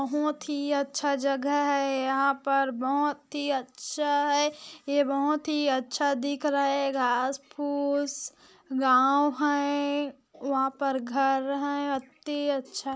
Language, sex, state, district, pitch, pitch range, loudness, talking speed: Hindi, female, Chhattisgarh, Korba, 280 Hz, 270-290 Hz, -27 LUFS, 140 wpm